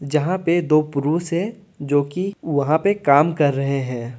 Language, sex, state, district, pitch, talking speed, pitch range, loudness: Hindi, male, Jharkhand, Deoghar, 155 Hz, 170 wpm, 140-175 Hz, -20 LUFS